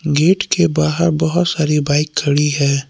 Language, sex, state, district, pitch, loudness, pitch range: Hindi, male, Jharkhand, Palamu, 150 Hz, -15 LUFS, 140-160 Hz